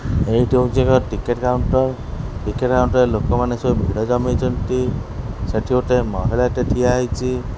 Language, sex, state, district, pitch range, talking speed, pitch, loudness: Odia, male, Odisha, Khordha, 110-125 Hz, 145 wpm, 125 Hz, -19 LUFS